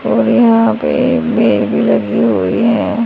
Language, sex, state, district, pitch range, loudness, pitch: Hindi, female, Haryana, Charkhi Dadri, 225-245 Hz, -12 LUFS, 230 Hz